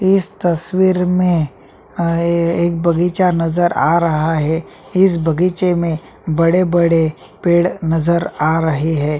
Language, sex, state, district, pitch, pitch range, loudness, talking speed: Hindi, male, Chhattisgarh, Sukma, 170 Hz, 160-180 Hz, -15 LUFS, 130 wpm